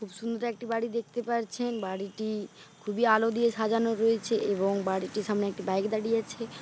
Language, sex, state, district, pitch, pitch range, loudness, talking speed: Bengali, female, West Bengal, Paschim Medinipur, 220 Hz, 205-230 Hz, -29 LUFS, 170 wpm